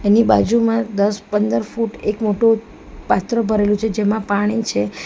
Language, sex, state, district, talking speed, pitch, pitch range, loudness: Gujarati, female, Gujarat, Valsad, 155 wpm, 210 Hz, 205-225 Hz, -18 LUFS